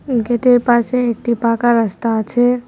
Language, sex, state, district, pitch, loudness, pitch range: Bengali, female, West Bengal, Cooch Behar, 240 Hz, -15 LUFS, 230-245 Hz